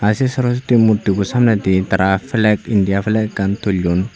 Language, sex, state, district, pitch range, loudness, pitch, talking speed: Chakma, male, Tripura, Unakoti, 95-115 Hz, -16 LUFS, 105 Hz, 160 wpm